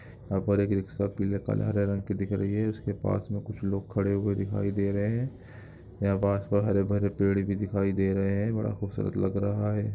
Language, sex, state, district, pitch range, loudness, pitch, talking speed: Hindi, male, Chhattisgarh, Raigarh, 100-105 Hz, -29 LUFS, 100 Hz, 235 wpm